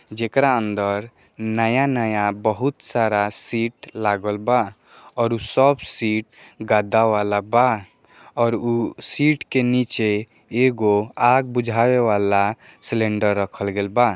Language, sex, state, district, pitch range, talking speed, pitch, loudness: Bhojpuri, male, Bihar, East Champaran, 105-125 Hz, 95 wpm, 115 Hz, -20 LUFS